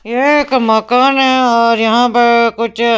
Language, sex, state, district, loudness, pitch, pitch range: Hindi, female, Punjab, Pathankot, -11 LUFS, 235 Hz, 230-260 Hz